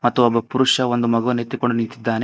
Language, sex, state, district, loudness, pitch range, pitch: Kannada, male, Karnataka, Koppal, -19 LUFS, 115-125 Hz, 120 Hz